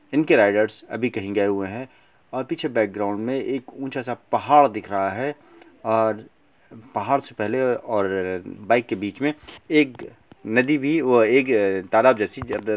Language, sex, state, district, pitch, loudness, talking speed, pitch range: Hindi, male, Bihar, Gopalganj, 110 Hz, -22 LUFS, 160 wpm, 100-135 Hz